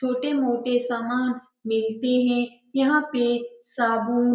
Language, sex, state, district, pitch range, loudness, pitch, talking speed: Hindi, female, Bihar, Lakhisarai, 240-255 Hz, -24 LUFS, 245 Hz, 110 wpm